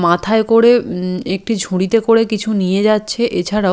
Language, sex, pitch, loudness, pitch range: Bengali, female, 215 Hz, -15 LUFS, 185-225 Hz